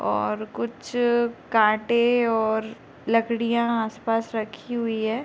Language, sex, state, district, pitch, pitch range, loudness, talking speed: Hindi, female, Bihar, Gopalganj, 225 Hz, 220-235 Hz, -24 LUFS, 125 wpm